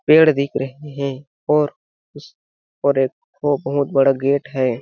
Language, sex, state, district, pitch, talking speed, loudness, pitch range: Hindi, male, Chhattisgarh, Balrampur, 140 Hz, 150 wpm, -19 LUFS, 135-145 Hz